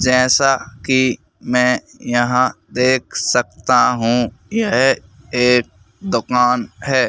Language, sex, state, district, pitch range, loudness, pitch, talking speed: Hindi, male, Madhya Pradesh, Bhopal, 120-130 Hz, -16 LUFS, 125 Hz, 95 wpm